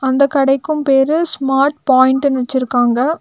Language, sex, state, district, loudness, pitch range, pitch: Tamil, female, Tamil Nadu, Nilgiris, -14 LUFS, 260-285 Hz, 270 Hz